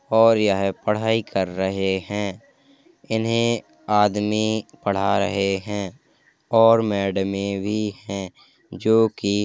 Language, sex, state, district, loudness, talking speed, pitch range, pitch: Hindi, male, Uttar Pradesh, Hamirpur, -22 LUFS, 110 wpm, 100-110 Hz, 105 Hz